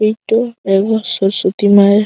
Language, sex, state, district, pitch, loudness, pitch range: Bengali, female, West Bengal, Malda, 205 Hz, -13 LUFS, 195-220 Hz